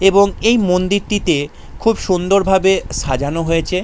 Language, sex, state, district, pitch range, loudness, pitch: Bengali, male, West Bengal, Jalpaiguri, 180-200 Hz, -16 LUFS, 190 Hz